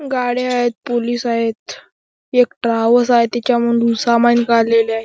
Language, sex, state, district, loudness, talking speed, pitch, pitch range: Marathi, male, Maharashtra, Chandrapur, -16 LUFS, 145 wpm, 235 Hz, 230-245 Hz